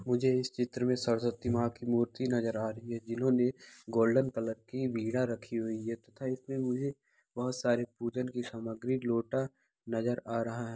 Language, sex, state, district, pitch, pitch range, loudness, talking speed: Hindi, male, Bihar, Saharsa, 120 Hz, 115-125 Hz, -33 LUFS, 185 wpm